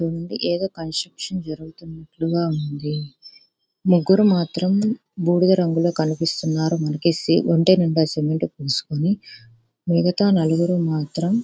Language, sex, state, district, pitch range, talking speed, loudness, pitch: Telugu, female, Andhra Pradesh, Visakhapatnam, 155-180 Hz, 90 wpm, -21 LUFS, 165 Hz